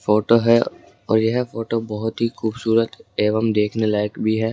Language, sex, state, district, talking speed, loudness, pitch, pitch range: Hindi, male, Rajasthan, Jaipur, 170 wpm, -20 LUFS, 110 Hz, 105-115 Hz